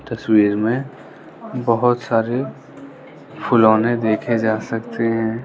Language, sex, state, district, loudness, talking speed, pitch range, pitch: Hindi, male, Arunachal Pradesh, Lower Dibang Valley, -18 LUFS, 100 wpm, 110-120 Hz, 115 Hz